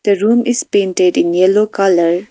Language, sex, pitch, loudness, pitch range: English, female, 200 Hz, -13 LUFS, 185-215 Hz